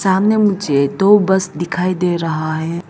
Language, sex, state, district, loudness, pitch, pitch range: Hindi, female, Arunachal Pradesh, Lower Dibang Valley, -15 LUFS, 180 Hz, 160-190 Hz